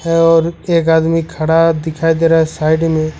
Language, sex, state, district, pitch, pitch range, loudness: Hindi, male, Jharkhand, Ranchi, 165 Hz, 160-165 Hz, -13 LUFS